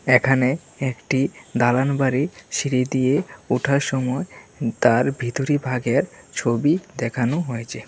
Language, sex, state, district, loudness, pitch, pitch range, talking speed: Bengali, male, Tripura, West Tripura, -22 LUFS, 130 Hz, 120-140 Hz, 115 wpm